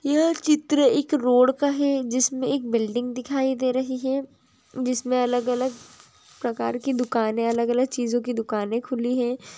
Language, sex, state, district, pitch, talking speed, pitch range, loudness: Hindi, female, Andhra Pradesh, Chittoor, 255 Hz, 165 wpm, 245-270 Hz, -23 LUFS